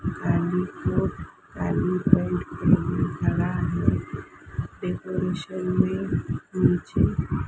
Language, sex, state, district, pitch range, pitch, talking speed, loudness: Hindi, female, Maharashtra, Mumbai Suburban, 165-185 Hz, 180 Hz, 90 wpm, -25 LUFS